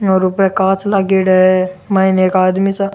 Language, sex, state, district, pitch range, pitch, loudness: Rajasthani, male, Rajasthan, Churu, 185-195 Hz, 190 Hz, -13 LUFS